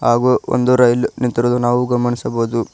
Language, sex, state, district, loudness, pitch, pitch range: Kannada, male, Karnataka, Koppal, -16 LUFS, 120 Hz, 120-125 Hz